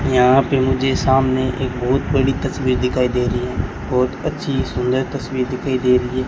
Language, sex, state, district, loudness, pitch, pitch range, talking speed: Hindi, male, Rajasthan, Bikaner, -18 LUFS, 130 Hz, 125-130 Hz, 190 wpm